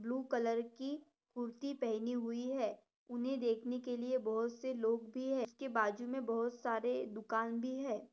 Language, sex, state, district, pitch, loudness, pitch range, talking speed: Hindi, female, Maharashtra, Dhule, 240 Hz, -39 LUFS, 230-255 Hz, 175 wpm